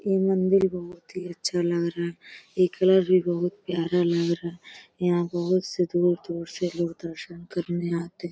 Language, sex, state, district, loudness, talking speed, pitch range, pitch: Hindi, female, Uttar Pradesh, Deoria, -25 LUFS, 190 wpm, 170-185 Hz, 175 Hz